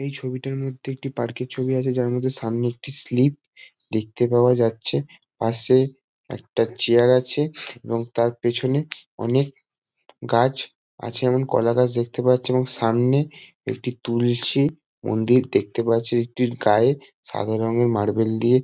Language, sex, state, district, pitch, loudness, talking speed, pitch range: Bengali, male, West Bengal, Kolkata, 125 Hz, -22 LUFS, 150 wpm, 115-130 Hz